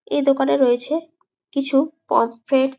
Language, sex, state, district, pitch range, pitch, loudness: Bengali, female, West Bengal, Jalpaiguri, 265-310 Hz, 275 Hz, -20 LUFS